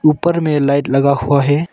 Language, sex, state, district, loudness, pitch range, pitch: Hindi, male, Arunachal Pradesh, Longding, -14 LUFS, 140-155 Hz, 145 Hz